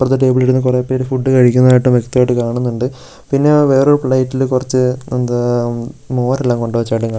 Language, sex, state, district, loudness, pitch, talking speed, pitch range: Malayalam, male, Kerala, Wayanad, -14 LUFS, 130 Hz, 140 wpm, 120-130 Hz